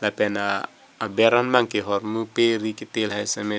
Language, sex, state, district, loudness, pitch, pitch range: Karbi, male, Assam, Karbi Anglong, -23 LUFS, 110 Hz, 105-115 Hz